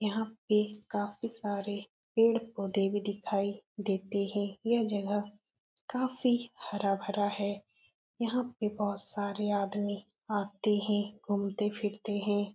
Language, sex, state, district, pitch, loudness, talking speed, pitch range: Hindi, female, Uttar Pradesh, Etah, 205 Hz, -33 LUFS, 120 wpm, 200-215 Hz